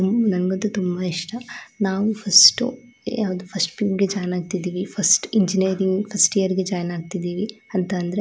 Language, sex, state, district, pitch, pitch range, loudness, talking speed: Kannada, female, Karnataka, Shimoga, 190 Hz, 185-210 Hz, -20 LUFS, 160 wpm